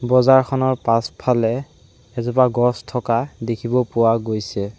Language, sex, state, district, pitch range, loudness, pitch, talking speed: Assamese, male, Assam, Sonitpur, 115-125 Hz, -19 LUFS, 120 Hz, 100 wpm